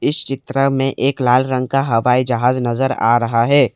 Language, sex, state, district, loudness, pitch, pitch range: Hindi, male, Assam, Kamrup Metropolitan, -16 LUFS, 130 Hz, 120-135 Hz